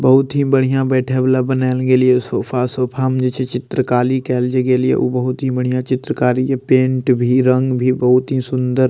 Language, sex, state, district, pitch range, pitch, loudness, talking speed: Maithili, male, Bihar, Madhepura, 125-130 Hz, 130 Hz, -16 LUFS, 210 wpm